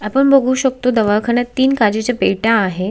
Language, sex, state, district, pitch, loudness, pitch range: Marathi, female, Maharashtra, Solapur, 240 Hz, -15 LUFS, 210-260 Hz